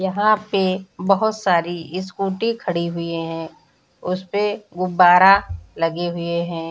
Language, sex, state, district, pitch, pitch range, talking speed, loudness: Hindi, female, Bihar, Samastipur, 180 Hz, 170-195 Hz, 115 wpm, -19 LUFS